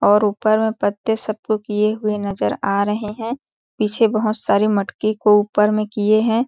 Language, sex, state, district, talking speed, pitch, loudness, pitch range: Hindi, female, Chhattisgarh, Sarguja, 195 wpm, 215 Hz, -19 LUFS, 210-220 Hz